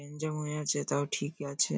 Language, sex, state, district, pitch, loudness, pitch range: Bengali, male, West Bengal, Paschim Medinipur, 145 Hz, -33 LUFS, 145-150 Hz